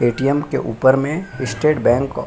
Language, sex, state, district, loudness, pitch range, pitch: Hindi, male, Bihar, Lakhisarai, -18 LUFS, 120-145 Hz, 135 Hz